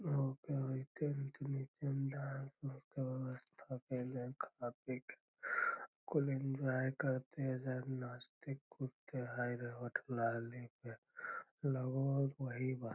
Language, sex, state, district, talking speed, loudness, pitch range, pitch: Magahi, male, Bihar, Lakhisarai, 95 wpm, -43 LUFS, 125-140 Hz, 130 Hz